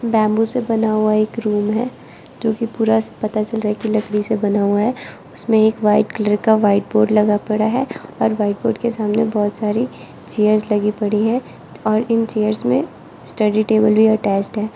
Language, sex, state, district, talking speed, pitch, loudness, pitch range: Hindi, female, Arunachal Pradesh, Lower Dibang Valley, 205 wpm, 215 Hz, -18 LUFS, 210-225 Hz